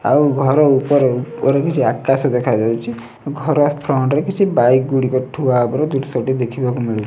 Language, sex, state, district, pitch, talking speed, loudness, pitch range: Odia, male, Odisha, Nuapada, 130 Hz, 160 wpm, -16 LUFS, 125-145 Hz